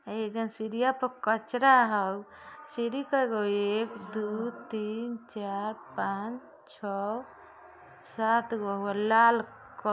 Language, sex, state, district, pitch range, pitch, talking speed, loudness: Bajjika, female, Bihar, Vaishali, 210-240 Hz, 220 Hz, 115 wpm, -29 LUFS